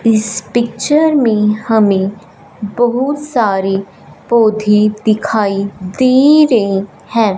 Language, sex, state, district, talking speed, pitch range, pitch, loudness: Hindi, female, Punjab, Fazilka, 90 wpm, 200-240 Hz, 215 Hz, -13 LUFS